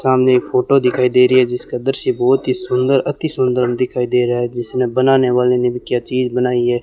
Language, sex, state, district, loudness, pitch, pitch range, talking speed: Hindi, male, Rajasthan, Bikaner, -16 LUFS, 125 Hz, 125-130 Hz, 235 wpm